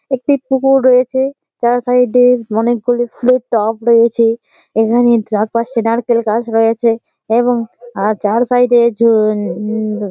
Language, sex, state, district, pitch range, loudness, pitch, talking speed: Bengali, female, West Bengal, Malda, 225-245 Hz, -13 LUFS, 235 Hz, 130 wpm